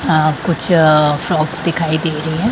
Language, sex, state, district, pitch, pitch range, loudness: Hindi, female, Bihar, Sitamarhi, 160 Hz, 155-165 Hz, -15 LUFS